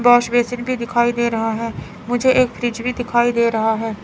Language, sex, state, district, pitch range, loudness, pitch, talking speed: Hindi, female, Chandigarh, Chandigarh, 230-245 Hz, -18 LUFS, 240 Hz, 225 wpm